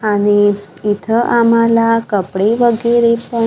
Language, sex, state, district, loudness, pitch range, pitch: Marathi, female, Maharashtra, Gondia, -13 LUFS, 205-230 Hz, 225 Hz